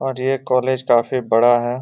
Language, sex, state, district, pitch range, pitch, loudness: Hindi, male, Jharkhand, Jamtara, 120-130 Hz, 125 Hz, -17 LUFS